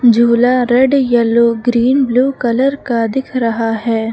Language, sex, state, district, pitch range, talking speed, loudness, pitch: Hindi, female, Uttar Pradesh, Lucknow, 230-255 Hz, 145 wpm, -13 LUFS, 240 Hz